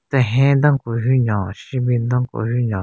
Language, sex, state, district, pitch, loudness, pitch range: Rengma, female, Nagaland, Kohima, 125 Hz, -18 LUFS, 115-130 Hz